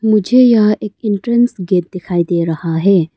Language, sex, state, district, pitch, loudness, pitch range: Hindi, female, Arunachal Pradesh, Papum Pare, 200 Hz, -14 LUFS, 175-215 Hz